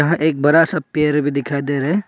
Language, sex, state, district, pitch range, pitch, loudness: Hindi, male, Arunachal Pradesh, Papum Pare, 145-160 Hz, 150 Hz, -17 LUFS